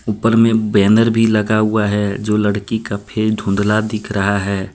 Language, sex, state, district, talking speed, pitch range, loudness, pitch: Hindi, male, Jharkhand, Deoghar, 190 wpm, 100-110 Hz, -16 LUFS, 105 Hz